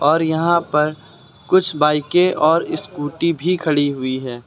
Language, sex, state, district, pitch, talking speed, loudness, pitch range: Hindi, male, Uttar Pradesh, Lucknow, 155 Hz, 150 wpm, -18 LUFS, 145-170 Hz